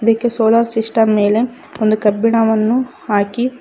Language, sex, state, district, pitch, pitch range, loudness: Kannada, female, Karnataka, Koppal, 225 Hz, 215-235 Hz, -15 LUFS